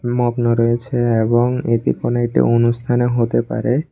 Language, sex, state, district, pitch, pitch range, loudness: Bengali, male, Tripura, West Tripura, 120 Hz, 115-120 Hz, -17 LUFS